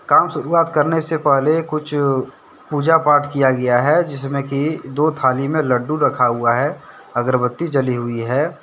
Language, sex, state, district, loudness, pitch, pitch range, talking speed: Hindi, male, Jharkhand, Deoghar, -18 LUFS, 145 Hz, 130-155 Hz, 175 wpm